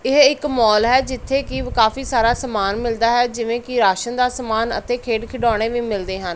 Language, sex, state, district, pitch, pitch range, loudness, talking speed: Punjabi, female, Punjab, Pathankot, 235 Hz, 225-255 Hz, -18 LUFS, 210 wpm